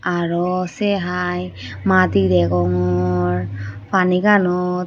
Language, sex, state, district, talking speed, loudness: Chakma, female, Tripura, Unakoti, 85 wpm, -18 LUFS